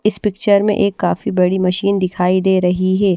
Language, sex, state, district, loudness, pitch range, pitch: Hindi, female, Haryana, Rohtak, -16 LUFS, 185-200 Hz, 190 Hz